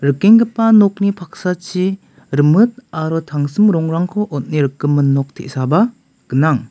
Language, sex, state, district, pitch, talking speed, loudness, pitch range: Garo, male, Meghalaya, West Garo Hills, 170 Hz, 105 wpm, -15 LUFS, 145-205 Hz